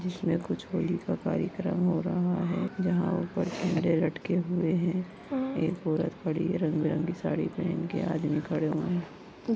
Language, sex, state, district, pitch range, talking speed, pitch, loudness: Hindi, female, Chhattisgarh, Bastar, 165-185 Hz, 175 wpm, 175 Hz, -30 LUFS